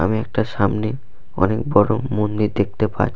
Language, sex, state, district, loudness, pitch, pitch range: Bengali, male, West Bengal, Purulia, -20 LUFS, 105 Hz, 105-110 Hz